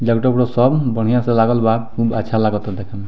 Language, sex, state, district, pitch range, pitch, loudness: Bhojpuri, male, Bihar, Muzaffarpur, 110-120 Hz, 115 Hz, -17 LUFS